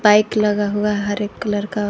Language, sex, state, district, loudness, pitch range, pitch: Hindi, female, Jharkhand, Garhwa, -19 LUFS, 205-210 Hz, 210 Hz